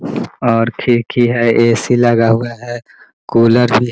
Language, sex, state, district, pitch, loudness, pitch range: Hindi, male, Bihar, Muzaffarpur, 120 Hz, -13 LUFS, 115-120 Hz